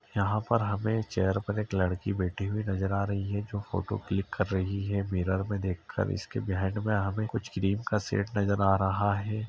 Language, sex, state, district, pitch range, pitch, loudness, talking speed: Hindi, male, Uttar Pradesh, Etah, 95-105 Hz, 100 Hz, -30 LUFS, 215 wpm